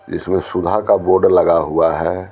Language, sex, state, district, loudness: Hindi, male, Bihar, Patna, -15 LUFS